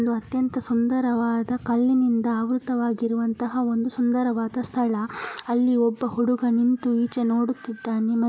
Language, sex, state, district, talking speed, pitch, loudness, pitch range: Kannada, female, Karnataka, Dakshina Kannada, 115 wpm, 240 Hz, -24 LUFS, 230-250 Hz